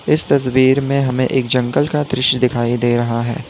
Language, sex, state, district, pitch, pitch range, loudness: Hindi, male, Uttar Pradesh, Lalitpur, 130 Hz, 120-135 Hz, -16 LUFS